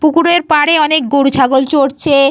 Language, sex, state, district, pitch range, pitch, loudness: Bengali, female, Jharkhand, Jamtara, 275-310 Hz, 285 Hz, -11 LUFS